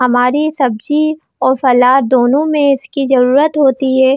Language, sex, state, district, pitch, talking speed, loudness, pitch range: Hindi, female, Jharkhand, Jamtara, 265 Hz, 145 wpm, -12 LUFS, 255-295 Hz